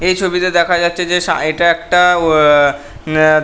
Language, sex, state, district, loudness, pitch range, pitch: Bengali, male, West Bengal, North 24 Parganas, -13 LUFS, 155-180 Hz, 170 Hz